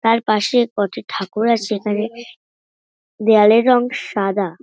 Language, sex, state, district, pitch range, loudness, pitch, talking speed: Bengali, female, West Bengal, North 24 Parganas, 210-235 Hz, -17 LUFS, 220 Hz, 115 wpm